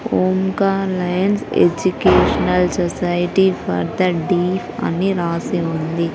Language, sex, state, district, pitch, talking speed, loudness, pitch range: Telugu, female, Andhra Pradesh, Sri Satya Sai, 180 Hz, 100 wpm, -18 LUFS, 170-190 Hz